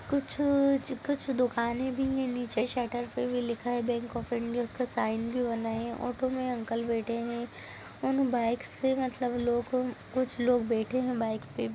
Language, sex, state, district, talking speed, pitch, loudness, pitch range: Hindi, female, Bihar, Sitamarhi, 180 wpm, 245 Hz, -31 LUFS, 235-255 Hz